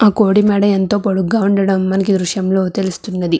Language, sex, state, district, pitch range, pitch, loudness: Telugu, female, Andhra Pradesh, Chittoor, 190-205 Hz, 195 Hz, -15 LUFS